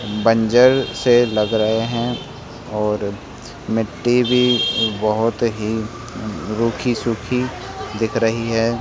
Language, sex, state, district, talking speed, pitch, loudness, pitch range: Hindi, male, Rajasthan, Jaipur, 100 wpm, 115 Hz, -19 LUFS, 110-120 Hz